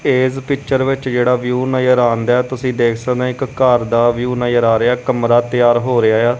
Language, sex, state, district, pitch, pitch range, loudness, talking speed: Punjabi, male, Punjab, Kapurthala, 125 Hz, 120-130 Hz, -15 LUFS, 225 wpm